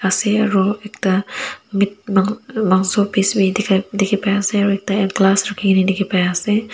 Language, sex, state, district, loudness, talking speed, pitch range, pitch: Nagamese, female, Nagaland, Dimapur, -17 LUFS, 125 wpm, 195-210 Hz, 200 Hz